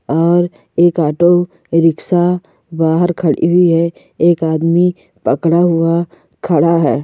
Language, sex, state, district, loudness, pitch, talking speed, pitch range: Hindi, female, Goa, North and South Goa, -13 LUFS, 170 Hz, 120 wpm, 165-175 Hz